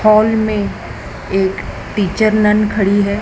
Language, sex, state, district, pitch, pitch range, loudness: Hindi, male, Madhya Pradesh, Dhar, 210 Hz, 200-215 Hz, -15 LUFS